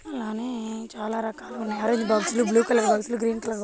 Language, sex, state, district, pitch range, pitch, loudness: Telugu, female, Telangana, Karimnagar, 220-235 Hz, 225 Hz, -25 LUFS